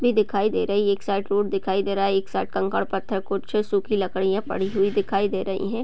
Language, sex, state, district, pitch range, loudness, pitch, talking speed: Hindi, female, Bihar, Gopalganj, 195-205 Hz, -24 LUFS, 200 Hz, 255 wpm